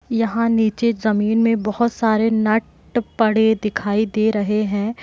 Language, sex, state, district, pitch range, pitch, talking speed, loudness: Hindi, female, Bihar, Muzaffarpur, 215-230 Hz, 220 Hz, 145 wpm, -19 LUFS